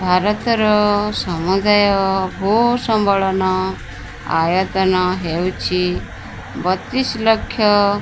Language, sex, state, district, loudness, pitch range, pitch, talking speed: Odia, female, Odisha, Sambalpur, -17 LUFS, 175-210 Hz, 190 Hz, 65 wpm